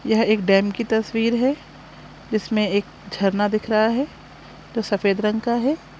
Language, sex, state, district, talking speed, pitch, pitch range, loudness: Hindi, female, Chhattisgarh, Sukma, 170 wpm, 220 Hz, 205-235 Hz, -21 LUFS